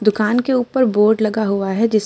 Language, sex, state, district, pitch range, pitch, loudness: Hindi, female, Uttar Pradesh, Muzaffarnagar, 210-240 Hz, 215 Hz, -17 LUFS